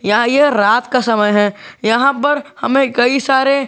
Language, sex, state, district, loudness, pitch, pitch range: Hindi, male, Jharkhand, Garhwa, -14 LUFS, 255 Hz, 225-275 Hz